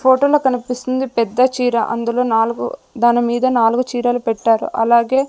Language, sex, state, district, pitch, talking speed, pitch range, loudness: Telugu, female, Andhra Pradesh, Sri Satya Sai, 245 Hz, 135 wpm, 230-255 Hz, -16 LUFS